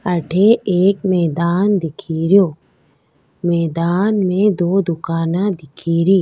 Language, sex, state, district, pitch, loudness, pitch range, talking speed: Rajasthani, female, Rajasthan, Nagaur, 180 Hz, -16 LUFS, 165-195 Hz, 105 wpm